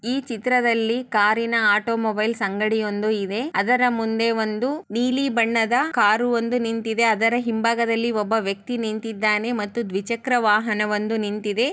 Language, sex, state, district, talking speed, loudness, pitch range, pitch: Kannada, female, Karnataka, Chamarajanagar, 130 wpm, -21 LUFS, 215-235 Hz, 225 Hz